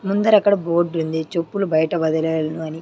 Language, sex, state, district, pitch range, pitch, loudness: Telugu, female, Andhra Pradesh, Sri Satya Sai, 160-195 Hz, 165 Hz, -19 LUFS